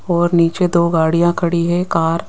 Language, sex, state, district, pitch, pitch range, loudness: Hindi, female, Rajasthan, Jaipur, 170 Hz, 165-175 Hz, -15 LUFS